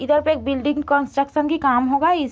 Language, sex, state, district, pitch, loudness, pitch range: Hindi, female, Bihar, East Champaran, 285 Hz, -19 LUFS, 275-300 Hz